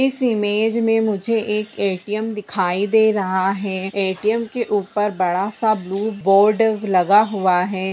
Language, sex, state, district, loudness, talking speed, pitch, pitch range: Hindi, female, Bihar, Bhagalpur, -19 LUFS, 145 wpm, 210 Hz, 190-220 Hz